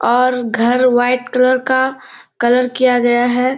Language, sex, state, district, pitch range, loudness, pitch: Hindi, female, Bihar, Kishanganj, 245-255 Hz, -14 LUFS, 250 Hz